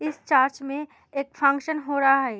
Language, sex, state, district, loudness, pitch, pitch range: Hindi, female, Uttar Pradesh, Muzaffarnagar, -23 LUFS, 275 Hz, 275-295 Hz